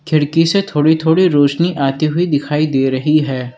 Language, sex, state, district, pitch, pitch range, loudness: Hindi, male, Uttar Pradesh, Lalitpur, 150 Hz, 140-165 Hz, -14 LUFS